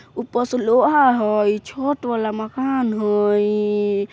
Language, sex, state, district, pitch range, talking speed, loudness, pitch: Bajjika, female, Bihar, Vaishali, 210-250 Hz, 115 wpm, -19 LUFS, 220 Hz